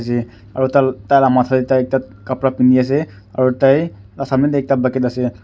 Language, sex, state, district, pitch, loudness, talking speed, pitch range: Nagamese, male, Nagaland, Kohima, 130 Hz, -16 LUFS, 175 wpm, 125-135 Hz